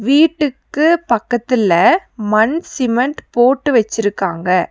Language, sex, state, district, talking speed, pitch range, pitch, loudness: Tamil, female, Tamil Nadu, Nilgiris, 75 wpm, 215-295 Hz, 245 Hz, -15 LUFS